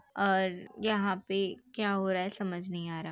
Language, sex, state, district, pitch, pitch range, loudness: Hindi, female, Uttar Pradesh, Jalaun, 190 Hz, 185-200 Hz, -32 LUFS